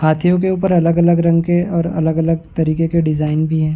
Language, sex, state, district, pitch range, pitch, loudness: Hindi, male, Uttar Pradesh, Varanasi, 160-170 Hz, 165 Hz, -15 LUFS